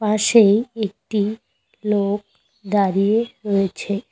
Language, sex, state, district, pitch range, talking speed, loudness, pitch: Bengali, female, West Bengal, Cooch Behar, 200-220 Hz, 75 wpm, -19 LUFS, 210 Hz